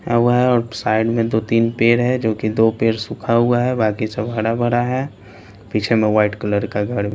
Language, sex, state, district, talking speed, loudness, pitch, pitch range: Hindi, male, Bihar, Patna, 220 wpm, -18 LUFS, 115 Hz, 110-120 Hz